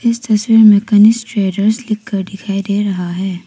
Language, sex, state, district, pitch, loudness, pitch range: Hindi, female, Arunachal Pradesh, Papum Pare, 205 Hz, -13 LUFS, 195-220 Hz